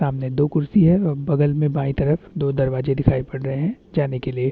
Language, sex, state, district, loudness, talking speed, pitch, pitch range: Hindi, male, Chhattisgarh, Bastar, -21 LUFS, 250 wpm, 145 Hz, 135-155 Hz